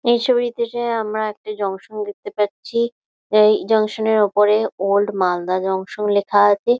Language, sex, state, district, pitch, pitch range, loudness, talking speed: Bengali, female, West Bengal, Malda, 210 Hz, 205-225 Hz, -19 LUFS, 140 wpm